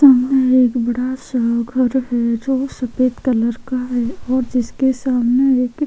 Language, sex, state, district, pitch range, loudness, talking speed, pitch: Hindi, female, Uttarakhand, Tehri Garhwal, 240-260 Hz, -17 LUFS, 165 wpm, 255 Hz